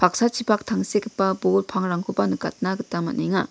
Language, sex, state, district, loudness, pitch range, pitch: Garo, female, Meghalaya, West Garo Hills, -23 LUFS, 185-215 Hz, 195 Hz